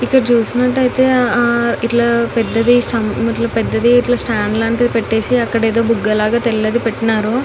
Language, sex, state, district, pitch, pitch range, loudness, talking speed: Telugu, female, Telangana, Nalgonda, 235 Hz, 225-240 Hz, -14 LUFS, 115 wpm